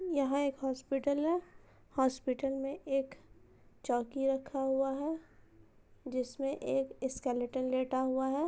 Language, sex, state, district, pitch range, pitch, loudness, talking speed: Hindi, female, Jharkhand, Jamtara, 260-280 Hz, 270 Hz, -35 LUFS, 115 wpm